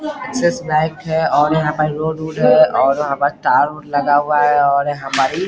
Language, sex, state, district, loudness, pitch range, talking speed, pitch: Hindi, male, Bihar, Vaishali, -16 LUFS, 145-160 Hz, 195 wpm, 150 Hz